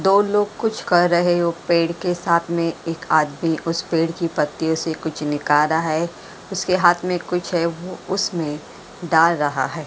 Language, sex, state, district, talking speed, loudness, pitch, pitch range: Hindi, female, Maharashtra, Mumbai Suburban, 190 wpm, -20 LUFS, 170 Hz, 160-175 Hz